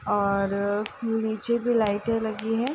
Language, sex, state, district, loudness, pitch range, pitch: Hindi, female, Uttar Pradesh, Ghazipur, -26 LUFS, 205-230 Hz, 220 Hz